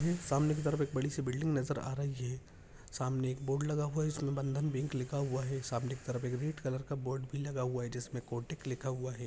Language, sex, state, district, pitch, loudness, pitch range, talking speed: Hindi, male, Rajasthan, Nagaur, 135 Hz, -36 LUFS, 130-145 Hz, 260 wpm